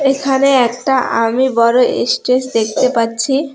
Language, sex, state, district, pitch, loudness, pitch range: Bengali, female, West Bengal, Alipurduar, 255 Hz, -14 LUFS, 230-270 Hz